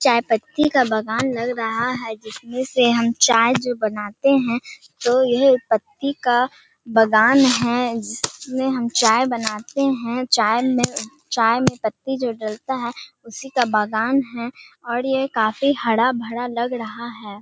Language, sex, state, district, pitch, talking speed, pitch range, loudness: Hindi, male, Bihar, Kishanganj, 240 Hz, 160 wpm, 225-260 Hz, -20 LUFS